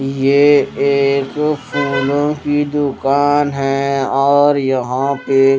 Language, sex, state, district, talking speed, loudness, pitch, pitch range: Hindi, male, Odisha, Malkangiri, 95 wpm, -15 LUFS, 140 Hz, 135-145 Hz